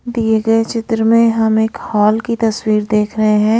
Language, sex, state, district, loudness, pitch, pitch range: Hindi, female, Haryana, Rohtak, -14 LUFS, 220 Hz, 215-230 Hz